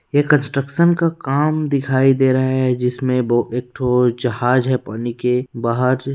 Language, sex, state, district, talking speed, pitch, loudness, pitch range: Hindi, male, Chhattisgarh, Rajnandgaon, 175 wpm, 130 Hz, -18 LUFS, 125-140 Hz